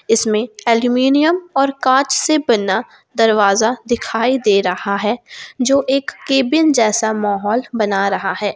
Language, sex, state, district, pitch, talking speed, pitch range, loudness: Hindi, female, Jharkhand, Garhwa, 230 Hz, 135 wpm, 210-270 Hz, -16 LUFS